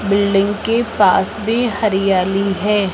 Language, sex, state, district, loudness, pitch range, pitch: Hindi, female, Rajasthan, Jaipur, -16 LUFS, 195-215 Hz, 205 Hz